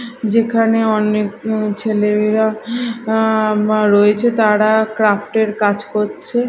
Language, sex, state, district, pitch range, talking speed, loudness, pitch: Bengali, female, Odisha, Malkangiri, 210-225 Hz, 100 wpm, -15 LUFS, 215 Hz